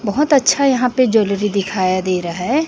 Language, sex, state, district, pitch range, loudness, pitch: Hindi, female, Chhattisgarh, Raipur, 185-260 Hz, -16 LUFS, 210 Hz